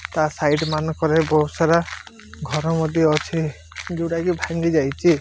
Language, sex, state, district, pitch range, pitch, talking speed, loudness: Odia, male, Odisha, Malkangiri, 150-165 Hz, 160 Hz, 125 wpm, -21 LUFS